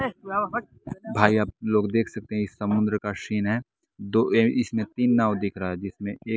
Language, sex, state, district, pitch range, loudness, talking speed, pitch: Hindi, male, Bihar, West Champaran, 105-115 Hz, -25 LUFS, 190 wpm, 105 Hz